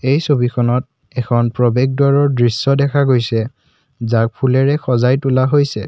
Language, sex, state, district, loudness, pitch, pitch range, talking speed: Assamese, male, Assam, Kamrup Metropolitan, -15 LUFS, 130 Hz, 120-140 Hz, 130 wpm